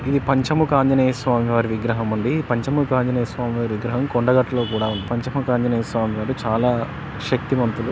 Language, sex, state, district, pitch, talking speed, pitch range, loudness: Telugu, male, Telangana, Karimnagar, 120 Hz, 160 wpm, 115-130 Hz, -21 LUFS